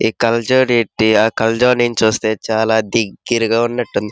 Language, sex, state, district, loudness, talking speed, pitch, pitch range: Telugu, male, Andhra Pradesh, Krishna, -15 LUFS, 160 wpm, 115 Hz, 110-120 Hz